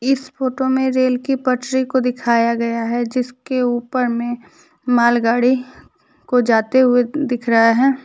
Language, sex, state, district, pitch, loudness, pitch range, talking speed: Hindi, female, Jharkhand, Deoghar, 250 Hz, -17 LUFS, 240-260 Hz, 150 wpm